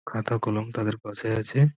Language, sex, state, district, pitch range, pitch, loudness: Bengali, male, West Bengal, Purulia, 105-120 Hz, 110 Hz, -27 LUFS